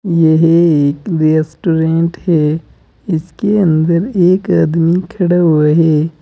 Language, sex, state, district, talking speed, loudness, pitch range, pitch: Hindi, male, Uttar Pradesh, Saharanpur, 105 wpm, -12 LUFS, 155-175 Hz, 165 Hz